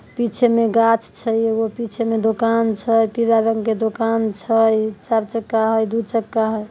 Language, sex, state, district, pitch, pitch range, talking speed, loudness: Maithili, female, Bihar, Samastipur, 225 Hz, 220-230 Hz, 185 wpm, -19 LUFS